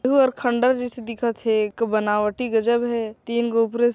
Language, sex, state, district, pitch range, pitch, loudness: Chhattisgarhi, female, Chhattisgarh, Sarguja, 225-245 Hz, 235 Hz, -22 LUFS